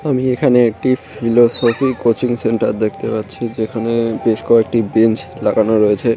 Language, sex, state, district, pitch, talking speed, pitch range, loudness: Bengali, male, West Bengal, Cooch Behar, 115 Hz, 135 wpm, 110-120 Hz, -15 LUFS